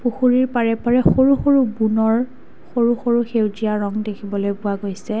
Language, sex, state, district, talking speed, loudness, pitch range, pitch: Assamese, female, Assam, Kamrup Metropolitan, 150 wpm, -19 LUFS, 210-245 Hz, 225 Hz